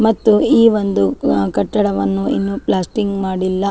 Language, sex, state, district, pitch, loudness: Kannada, female, Karnataka, Dakshina Kannada, 185 Hz, -16 LUFS